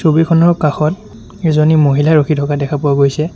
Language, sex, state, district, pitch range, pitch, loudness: Assamese, male, Assam, Sonitpur, 145-160 Hz, 155 Hz, -13 LUFS